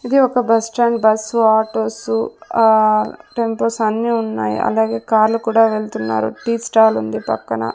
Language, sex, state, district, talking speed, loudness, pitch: Telugu, female, Andhra Pradesh, Sri Satya Sai, 140 wpm, -16 LUFS, 220 Hz